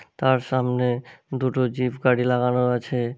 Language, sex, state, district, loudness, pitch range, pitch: Bengali, male, West Bengal, Malda, -23 LUFS, 125-130 Hz, 125 Hz